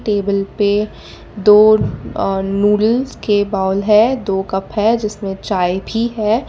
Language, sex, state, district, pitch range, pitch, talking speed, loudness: Hindi, female, Gujarat, Valsad, 195-215 Hz, 210 Hz, 140 wpm, -15 LUFS